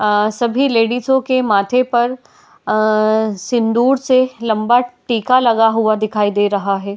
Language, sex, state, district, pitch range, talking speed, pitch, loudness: Hindi, female, Uttar Pradesh, Etah, 215-250 Hz, 145 wpm, 225 Hz, -15 LUFS